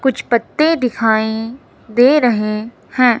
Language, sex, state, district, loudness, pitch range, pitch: Hindi, male, Himachal Pradesh, Shimla, -15 LUFS, 220-255 Hz, 240 Hz